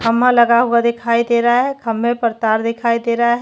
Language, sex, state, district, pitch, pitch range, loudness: Hindi, female, Uttarakhand, Tehri Garhwal, 235 Hz, 230-240 Hz, -15 LUFS